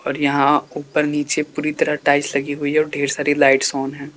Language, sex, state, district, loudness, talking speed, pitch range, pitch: Hindi, male, Uttar Pradesh, Lalitpur, -18 LUFS, 230 wpm, 140-150 Hz, 145 Hz